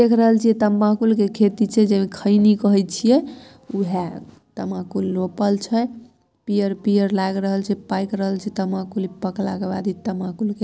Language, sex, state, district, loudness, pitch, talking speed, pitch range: Maithili, female, Bihar, Samastipur, -20 LUFS, 200 Hz, 175 wpm, 195-215 Hz